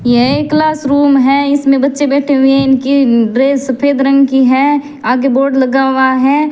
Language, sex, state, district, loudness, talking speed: Hindi, male, Rajasthan, Bikaner, -11 LUFS, 195 wpm